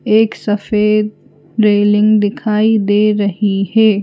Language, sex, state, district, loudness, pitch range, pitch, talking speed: Hindi, female, Madhya Pradesh, Bhopal, -13 LUFS, 205-215 Hz, 210 Hz, 105 wpm